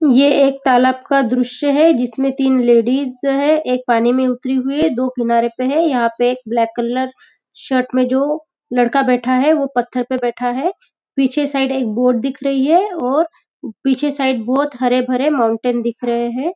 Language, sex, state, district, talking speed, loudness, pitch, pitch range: Hindi, female, Maharashtra, Nagpur, 190 wpm, -16 LUFS, 260 Hz, 245-275 Hz